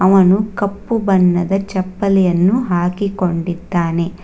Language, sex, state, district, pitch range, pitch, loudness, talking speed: Kannada, female, Karnataka, Bangalore, 175-200 Hz, 185 Hz, -16 LUFS, 70 wpm